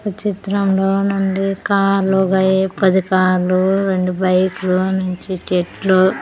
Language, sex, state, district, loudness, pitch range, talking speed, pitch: Telugu, female, Andhra Pradesh, Sri Satya Sai, -16 LUFS, 185-195 Hz, 105 wpm, 190 Hz